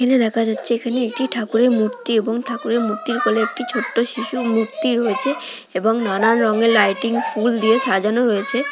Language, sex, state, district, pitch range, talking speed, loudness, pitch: Bengali, female, West Bengal, Dakshin Dinajpur, 220-245 Hz, 165 wpm, -19 LUFS, 230 Hz